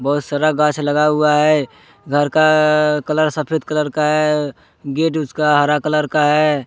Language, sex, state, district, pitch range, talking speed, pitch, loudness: Hindi, male, Jharkhand, Deoghar, 145-155 Hz, 170 wpm, 150 Hz, -16 LUFS